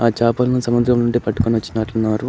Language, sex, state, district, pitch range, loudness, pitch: Telugu, male, Andhra Pradesh, Anantapur, 110-120 Hz, -18 LUFS, 115 Hz